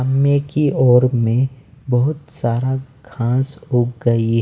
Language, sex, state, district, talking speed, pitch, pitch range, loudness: Hindi, male, Bihar, Patna, 120 wpm, 130 Hz, 120-135 Hz, -18 LUFS